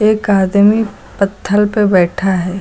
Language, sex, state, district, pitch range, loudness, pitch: Hindi, female, Uttar Pradesh, Lucknow, 190-210 Hz, -13 LUFS, 200 Hz